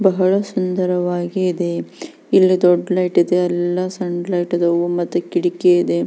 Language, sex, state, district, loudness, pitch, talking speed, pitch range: Kannada, female, Karnataka, Belgaum, -18 LUFS, 180 Hz, 130 wpm, 175-185 Hz